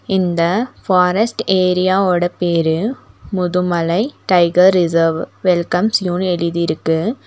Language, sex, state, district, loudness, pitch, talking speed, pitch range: Tamil, female, Tamil Nadu, Nilgiris, -16 LUFS, 180 Hz, 90 wpm, 170-190 Hz